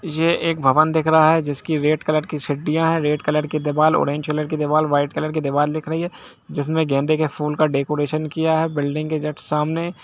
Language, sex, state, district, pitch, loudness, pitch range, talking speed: Hindi, female, Jharkhand, Jamtara, 155 Hz, -20 LUFS, 150-160 Hz, 225 wpm